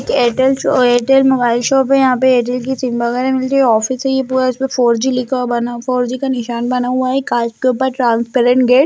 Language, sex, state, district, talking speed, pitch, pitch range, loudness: Hindi, male, Bihar, Gaya, 205 wpm, 255 Hz, 245-265 Hz, -14 LUFS